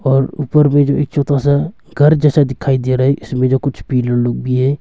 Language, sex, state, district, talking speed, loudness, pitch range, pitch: Hindi, male, Arunachal Pradesh, Longding, 250 wpm, -14 LUFS, 130-145 Hz, 140 Hz